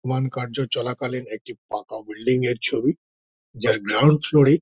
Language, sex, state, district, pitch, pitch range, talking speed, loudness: Bengali, male, West Bengal, Dakshin Dinajpur, 125 Hz, 110-130 Hz, 155 wpm, -22 LUFS